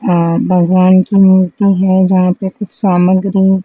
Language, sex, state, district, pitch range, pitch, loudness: Hindi, female, Madhya Pradesh, Dhar, 185-190 Hz, 185 Hz, -11 LUFS